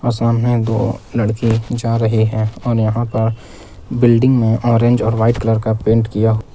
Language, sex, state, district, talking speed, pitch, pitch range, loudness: Hindi, male, Jharkhand, Palamu, 165 wpm, 115 Hz, 110-120 Hz, -16 LUFS